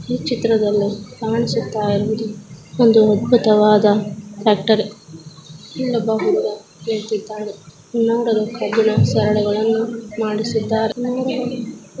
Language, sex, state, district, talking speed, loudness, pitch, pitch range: Kannada, female, Karnataka, Mysore, 80 wpm, -18 LUFS, 215 Hz, 205-230 Hz